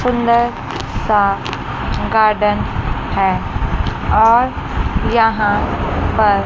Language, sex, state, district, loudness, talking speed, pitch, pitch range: Hindi, female, Chandigarh, Chandigarh, -16 LUFS, 65 wpm, 225 Hz, 210-235 Hz